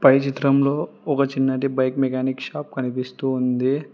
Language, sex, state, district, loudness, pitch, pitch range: Telugu, female, Telangana, Hyderabad, -22 LUFS, 135 Hz, 130-140 Hz